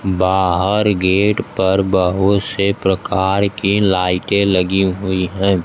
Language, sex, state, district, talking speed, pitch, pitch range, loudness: Hindi, male, Bihar, Kaimur, 115 wpm, 95 Hz, 95-100 Hz, -16 LUFS